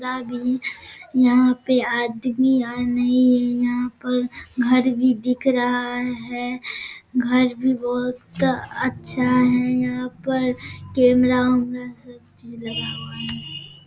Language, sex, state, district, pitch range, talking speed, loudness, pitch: Hindi, male, Bihar, Samastipur, 245-250 Hz, 125 wpm, -21 LUFS, 250 Hz